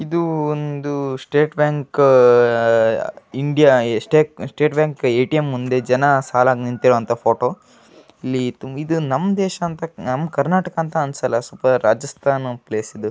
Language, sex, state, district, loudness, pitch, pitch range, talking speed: Kannada, male, Karnataka, Gulbarga, -18 LUFS, 140 Hz, 125-155 Hz, 125 wpm